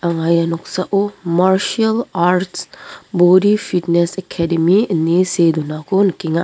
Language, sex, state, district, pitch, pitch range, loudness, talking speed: Garo, female, Meghalaya, West Garo Hills, 180 Hz, 170-190 Hz, -16 LUFS, 110 wpm